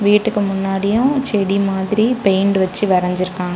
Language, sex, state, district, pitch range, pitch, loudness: Tamil, female, Tamil Nadu, Kanyakumari, 190-210 Hz, 195 Hz, -16 LUFS